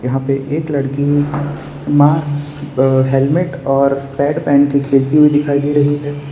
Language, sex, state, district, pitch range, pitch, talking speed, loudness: Hindi, male, Gujarat, Valsad, 140-145 Hz, 145 Hz, 160 wpm, -14 LUFS